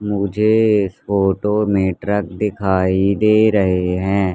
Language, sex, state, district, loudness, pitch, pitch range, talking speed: Hindi, male, Madhya Pradesh, Katni, -17 LUFS, 100 Hz, 95-105 Hz, 125 wpm